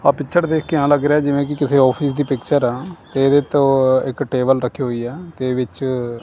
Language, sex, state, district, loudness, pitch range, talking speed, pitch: Punjabi, male, Punjab, Kapurthala, -17 LUFS, 130-145 Hz, 240 wpm, 140 Hz